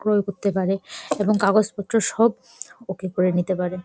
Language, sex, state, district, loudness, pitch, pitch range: Bengali, female, West Bengal, Jalpaiguri, -22 LUFS, 200 Hz, 185-215 Hz